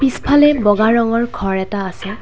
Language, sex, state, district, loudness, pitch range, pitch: Assamese, female, Assam, Kamrup Metropolitan, -15 LUFS, 200-245 Hz, 220 Hz